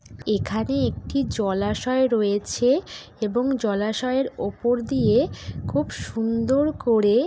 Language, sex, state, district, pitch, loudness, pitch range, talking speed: Bengali, female, West Bengal, Jhargram, 240 Hz, -23 LUFS, 215-260 Hz, 90 wpm